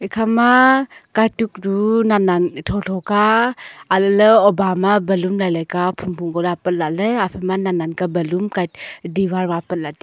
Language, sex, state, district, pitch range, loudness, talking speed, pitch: Wancho, female, Arunachal Pradesh, Longding, 180-210 Hz, -17 LUFS, 125 wpm, 190 Hz